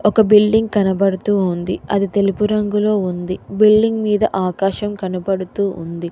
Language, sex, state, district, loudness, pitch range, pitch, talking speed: Telugu, female, Telangana, Mahabubabad, -17 LUFS, 185-210 Hz, 200 Hz, 125 wpm